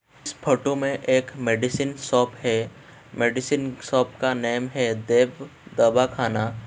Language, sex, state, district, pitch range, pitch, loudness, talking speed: Hindi, male, Uttar Pradesh, Etah, 120-135 Hz, 125 Hz, -23 LUFS, 135 wpm